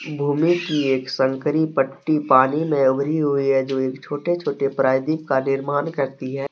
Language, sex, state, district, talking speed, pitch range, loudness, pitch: Hindi, male, Jharkhand, Deoghar, 175 wpm, 135-150 Hz, -21 LUFS, 140 Hz